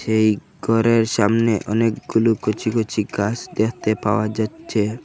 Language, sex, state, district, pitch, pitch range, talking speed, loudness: Bengali, male, Assam, Hailakandi, 110 Hz, 105-115 Hz, 120 wpm, -20 LUFS